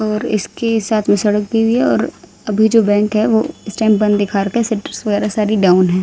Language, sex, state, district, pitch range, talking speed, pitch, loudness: Hindi, female, Haryana, Rohtak, 205-220 Hz, 250 wpm, 210 Hz, -15 LUFS